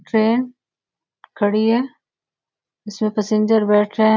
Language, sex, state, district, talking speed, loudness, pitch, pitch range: Hindi, female, Uttar Pradesh, Gorakhpur, 115 wpm, -18 LUFS, 215 Hz, 205-225 Hz